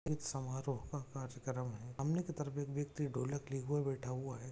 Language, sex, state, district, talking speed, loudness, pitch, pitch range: Hindi, male, Maharashtra, Aurangabad, 210 wpm, -41 LUFS, 135 Hz, 130-145 Hz